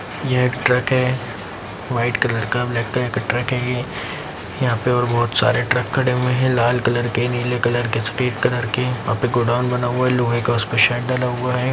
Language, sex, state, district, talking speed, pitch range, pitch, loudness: Hindi, male, Bihar, Lakhisarai, 225 wpm, 120-125 Hz, 125 Hz, -19 LUFS